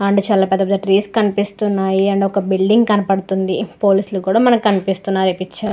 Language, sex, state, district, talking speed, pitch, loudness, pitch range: Telugu, female, Andhra Pradesh, Guntur, 170 wpm, 195 Hz, -16 LUFS, 190-205 Hz